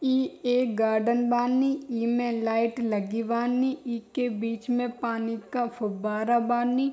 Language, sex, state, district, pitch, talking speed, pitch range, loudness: Bhojpuri, female, Bihar, East Champaran, 240 Hz, 130 wpm, 230-245 Hz, -27 LUFS